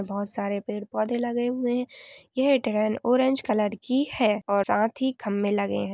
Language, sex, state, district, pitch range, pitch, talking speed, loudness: Hindi, female, Uttar Pradesh, Jyotiba Phule Nagar, 205-250 Hz, 220 Hz, 200 wpm, -26 LUFS